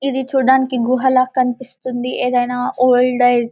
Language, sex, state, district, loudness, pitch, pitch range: Telugu, female, Telangana, Karimnagar, -16 LUFS, 255 Hz, 245-260 Hz